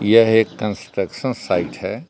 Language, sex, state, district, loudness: Hindi, male, Jharkhand, Palamu, -19 LUFS